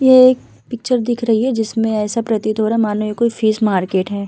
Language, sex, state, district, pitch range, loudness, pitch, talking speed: Hindi, female, Uttar Pradesh, Budaun, 215-235 Hz, -16 LUFS, 225 Hz, 265 wpm